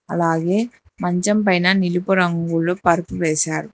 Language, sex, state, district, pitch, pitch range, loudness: Telugu, female, Telangana, Hyderabad, 175 Hz, 170-190 Hz, -19 LUFS